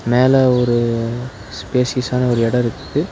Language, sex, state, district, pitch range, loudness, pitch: Tamil, male, Tamil Nadu, Nilgiris, 115-125 Hz, -17 LUFS, 125 Hz